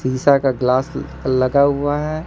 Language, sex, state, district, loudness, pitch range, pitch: Hindi, male, Jharkhand, Ranchi, -17 LUFS, 130-145 Hz, 140 Hz